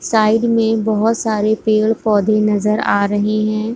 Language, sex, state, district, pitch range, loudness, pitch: Hindi, female, Jharkhand, Sahebganj, 210-220 Hz, -15 LUFS, 215 Hz